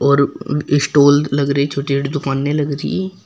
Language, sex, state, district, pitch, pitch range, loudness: Hindi, female, Uttar Pradesh, Shamli, 140 Hz, 140-145 Hz, -16 LUFS